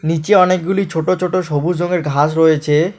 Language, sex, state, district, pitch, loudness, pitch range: Bengali, male, West Bengal, Alipurduar, 170 Hz, -15 LUFS, 155-185 Hz